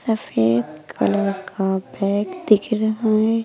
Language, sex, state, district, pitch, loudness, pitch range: Hindi, female, Uttar Pradesh, Lucknow, 205 Hz, -20 LUFS, 190-220 Hz